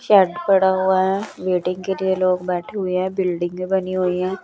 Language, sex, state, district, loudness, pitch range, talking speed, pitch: Hindi, female, Bihar, West Champaran, -20 LUFS, 180-190 Hz, 190 wpm, 185 Hz